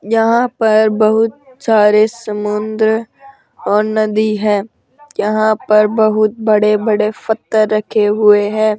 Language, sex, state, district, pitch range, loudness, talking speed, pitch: Hindi, female, Rajasthan, Jaipur, 210-220 Hz, -13 LUFS, 115 wpm, 215 Hz